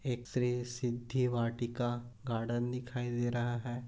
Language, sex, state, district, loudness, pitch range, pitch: Hindi, male, Chhattisgarh, Korba, -36 LUFS, 120-125 Hz, 120 Hz